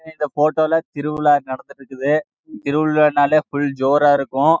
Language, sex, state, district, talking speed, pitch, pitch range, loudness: Tamil, male, Karnataka, Chamarajanagar, 180 wpm, 150 Hz, 140-155 Hz, -18 LUFS